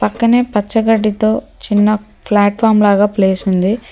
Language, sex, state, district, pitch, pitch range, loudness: Telugu, female, Telangana, Hyderabad, 210 Hz, 205-220 Hz, -14 LUFS